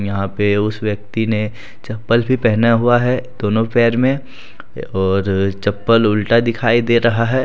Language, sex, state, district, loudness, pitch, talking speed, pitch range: Hindi, male, Jharkhand, Deoghar, -16 LUFS, 115 Hz, 160 wpm, 105-120 Hz